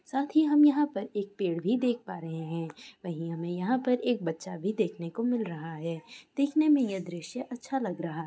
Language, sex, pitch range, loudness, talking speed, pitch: Maithili, female, 170-255 Hz, -30 LUFS, 230 wpm, 205 Hz